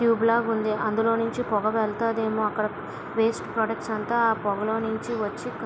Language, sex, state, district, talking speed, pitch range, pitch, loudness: Telugu, female, Andhra Pradesh, Visakhapatnam, 150 wpm, 215-230 Hz, 220 Hz, -25 LUFS